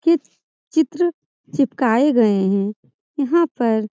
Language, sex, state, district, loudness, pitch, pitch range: Hindi, female, Bihar, Araria, -19 LUFS, 280 Hz, 225-320 Hz